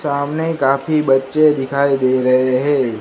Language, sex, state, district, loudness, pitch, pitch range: Hindi, male, Gujarat, Gandhinagar, -16 LUFS, 140 Hz, 130-150 Hz